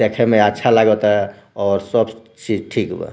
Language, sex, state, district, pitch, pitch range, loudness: Bhojpuri, male, Bihar, Muzaffarpur, 105 Hz, 100-115 Hz, -17 LUFS